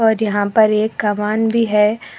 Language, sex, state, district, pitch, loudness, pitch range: Hindi, female, Karnataka, Koppal, 215 Hz, -16 LUFS, 210-225 Hz